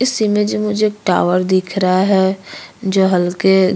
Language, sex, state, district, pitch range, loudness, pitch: Hindi, female, Chhattisgarh, Kabirdham, 185-210 Hz, -15 LUFS, 190 Hz